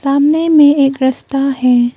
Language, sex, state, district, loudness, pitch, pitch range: Hindi, female, Arunachal Pradesh, Papum Pare, -12 LUFS, 275 Hz, 260-285 Hz